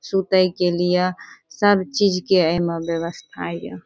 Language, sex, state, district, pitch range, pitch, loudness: Maithili, female, Bihar, Saharsa, 165-190 Hz, 180 Hz, -20 LUFS